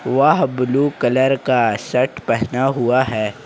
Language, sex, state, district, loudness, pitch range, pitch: Hindi, male, Jharkhand, Ranchi, -17 LUFS, 120-135 Hz, 130 Hz